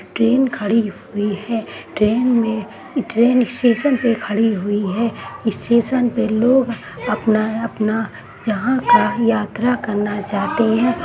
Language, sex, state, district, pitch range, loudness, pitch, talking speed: Hindi, female, Bihar, Saharsa, 215-240 Hz, -18 LUFS, 225 Hz, 125 wpm